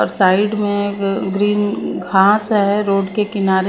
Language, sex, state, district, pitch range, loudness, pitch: Hindi, female, Maharashtra, Mumbai Suburban, 190-205 Hz, -16 LUFS, 200 Hz